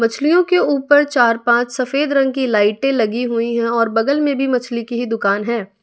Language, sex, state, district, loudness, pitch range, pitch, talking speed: Hindi, female, Bihar, West Champaran, -16 LUFS, 230-275 Hz, 240 Hz, 215 wpm